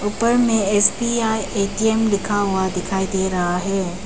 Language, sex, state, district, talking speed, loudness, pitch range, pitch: Hindi, female, Arunachal Pradesh, Papum Pare, 165 wpm, -19 LUFS, 190-220 Hz, 200 Hz